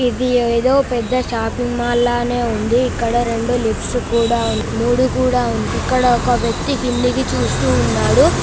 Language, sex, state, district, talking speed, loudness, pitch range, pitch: Telugu, male, Andhra Pradesh, Krishna, 150 wpm, -17 LUFS, 235-250 Hz, 240 Hz